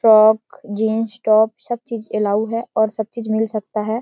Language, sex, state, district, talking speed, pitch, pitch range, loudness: Hindi, female, Chhattisgarh, Rajnandgaon, 195 wpm, 220 Hz, 215-225 Hz, -19 LUFS